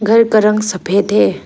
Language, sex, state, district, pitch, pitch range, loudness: Hindi, female, Arunachal Pradesh, Lower Dibang Valley, 210 Hz, 200-215 Hz, -13 LUFS